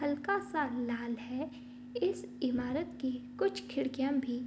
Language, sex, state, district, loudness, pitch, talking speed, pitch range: Hindi, female, Bihar, Madhepura, -36 LUFS, 260 Hz, 150 wpm, 245-290 Hz